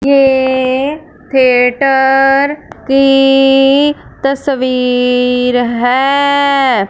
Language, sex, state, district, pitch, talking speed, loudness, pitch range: Hindi, female, Punjab, Fazilka, 270 Hz, 45 wpm, -11 LUFS, 255-275 Hz